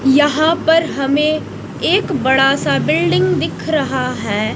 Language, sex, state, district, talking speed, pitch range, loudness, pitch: Hindi, female, Odisha, Nuapada, 130 wpm, 185-305 Hz, -15 LUFS, 275 Hz